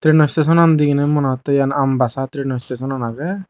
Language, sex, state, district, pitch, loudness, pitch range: Chakma, male, Tripura, Dhalai, 140 Hz, -17 LUFS, 135-155 Hz